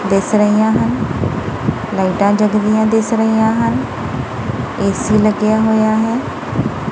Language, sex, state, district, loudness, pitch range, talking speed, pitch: Punjabi, female, Punjab, Kapurthala, -15 LUFS, 190-220 Hz, 105 wpm, 210 Hz